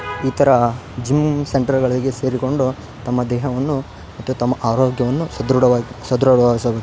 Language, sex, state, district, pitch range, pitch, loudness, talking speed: Kannada, male, Karnataka, Raichur, 120-135 Hz, 130 Hz, -18 LUFS, 105 wpm